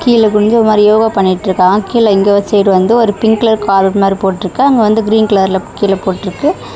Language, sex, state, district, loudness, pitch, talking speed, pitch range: Tamil, female, Tamil Nadu, Chennai, -10 LUFS, 205 Hz, 195 wpm, 195-220 Hz